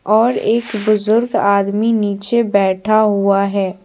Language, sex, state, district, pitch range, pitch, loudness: Hindi, female, Bihar, Patna, 200-220 Hz, 210 Hz, -15 LUFS